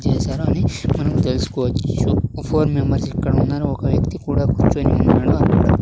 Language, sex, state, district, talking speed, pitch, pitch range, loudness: Telugu, male, Andhra Pradesh, Sri Satya Sai, 165 wpm, 135 Hz, 120-140 Hz, -18 LUFS